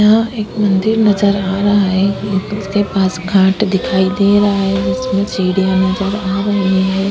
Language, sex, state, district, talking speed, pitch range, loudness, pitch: Hindi, female, Uttar Pradesh, Hamirpur, 170 wpm, 190-205 Hz, -14 LUFS, 195 Hz